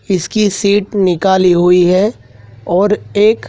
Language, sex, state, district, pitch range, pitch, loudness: Hindi, male, Madhya Pradesh, Dhar, 175-205 Hz, 190 Hz, -12 LUFS